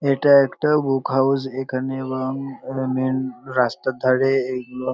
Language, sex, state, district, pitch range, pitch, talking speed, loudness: Bengali, male, West Bengal, North 24 Parganas, 130-135 Hz, 130 Hz, 135 wpm, -21 LUFS